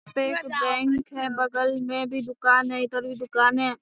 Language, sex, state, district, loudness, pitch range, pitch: Hindi, female, Bihar, Jamui, -24 LUFS, 250-265 Hz, 255 Hz